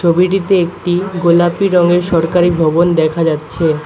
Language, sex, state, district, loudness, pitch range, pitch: Bengali, male, West Bengal, Alipurduar, -13 LUFS, 165-180 Hz, 175 Hz